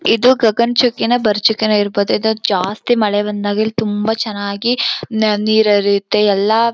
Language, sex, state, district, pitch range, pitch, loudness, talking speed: Kannada, female, Karnataka, Chamarajanagar, 205-225 Hz, 215 Hz, -15 LUFS, 125 wpm